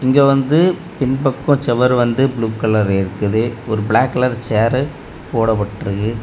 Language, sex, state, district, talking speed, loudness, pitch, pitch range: Tamil, male, Tamil Nadu, Kanyakumari, 125 wpm, -16 LUFS, 120 Hz, 110-135 Hz